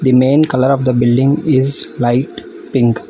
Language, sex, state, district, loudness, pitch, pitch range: English, female, Telangana, Hyderabad, -13 LUFS, 130 Hz, 125-135 Hz